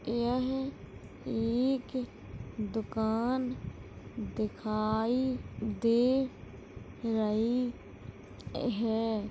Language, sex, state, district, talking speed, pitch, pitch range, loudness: Hindi, female, Uttar Pradesh, Jalaun, 45 wpm, 235 Hz, 220-255 Hz, -32 LUFS